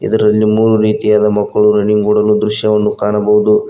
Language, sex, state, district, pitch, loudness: Kannada, male, Karnataka, Koppal, 105 Hz, -12 LUFS